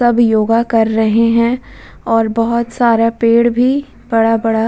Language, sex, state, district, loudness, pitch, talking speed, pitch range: Hindi, female, Bihar, Vaishali, -13 LUFS, 230 Hz, 155 wpm, 225-235 Hz